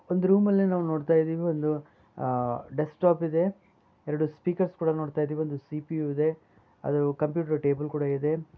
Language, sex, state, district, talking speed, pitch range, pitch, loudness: Kannada, male, Karnataka, Bellary, 140 wpm, 150-170 Hz, 155 Hz, -28 LUFS